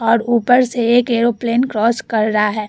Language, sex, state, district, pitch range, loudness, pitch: Hindi, female, Bihar, Vaishali, 225-240 Hz, -15 LUFS, 235 Hz